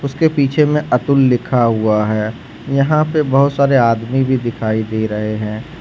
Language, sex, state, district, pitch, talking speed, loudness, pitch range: Hindi, male, Jharkhand, Ranchi, 130 Hz, 175 wpm, -15 LUFS, 110-140 Hz